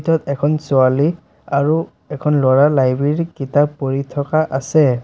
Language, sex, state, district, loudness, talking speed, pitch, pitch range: Assamese, male, Assam, Sonitpur, -17 LUFS, 130 wpm, 145 Hz, 135-155 Hz